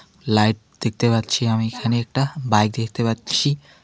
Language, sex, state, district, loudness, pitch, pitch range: Bengali, male, West Bengal, Alipurduar, -21 LUFS, 115 Hz, 110-135 Hz